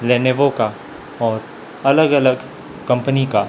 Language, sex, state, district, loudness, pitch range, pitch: Hindi, male, Chhattisgarh, Raipur, -17 LUFS, 125-140 Hz, 130 Hz